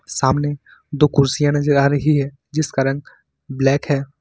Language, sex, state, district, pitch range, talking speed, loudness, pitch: Hindi, male, Jharkhand, Ranchi, 135-145 Hz, 155 wpm, -18 LUFS, 140 Hz